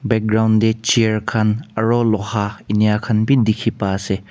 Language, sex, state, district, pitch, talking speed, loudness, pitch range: Nagamese, male, Nagaland, Kohima, 110 Hz, 155 wpm, -17 LUFS, 105-115 Hz